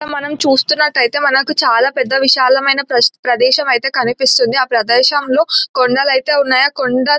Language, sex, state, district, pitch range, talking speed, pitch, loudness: Telugu, male, Telangana, Nalgonda, 255-285 Hz, 140 wpm, 265 Hz, -12 LUFS